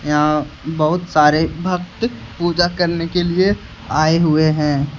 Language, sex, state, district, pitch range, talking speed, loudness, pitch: Hindi, male, Jharkhand, Deoghar, 150-175 Hz, 130 wpm, -17 LUFS, 160 Hz